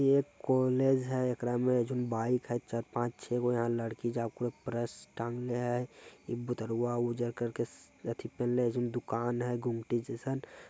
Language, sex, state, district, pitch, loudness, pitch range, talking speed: Hindi, male, Bihar, Jamui, 120 Hz, -34 LUFS, 120-125 Hz, 140 wpm